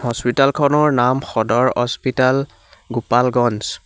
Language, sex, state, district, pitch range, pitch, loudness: Assamese, male, Assam, Hailakandi, 120-135 Hz, 125 Hz, -17 LUFS